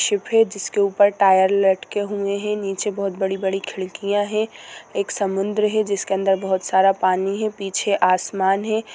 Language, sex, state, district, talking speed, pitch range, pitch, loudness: Hindi, female, Chhattisgarh, Korba, 180 wpm, 190-205 Hz, 200 Hz, -20 LUFS